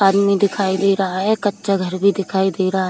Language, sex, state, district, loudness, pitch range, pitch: Hindi, female, Bihar, Kishanganj, -18 LUFS, 190-200 Hz, 195 Hz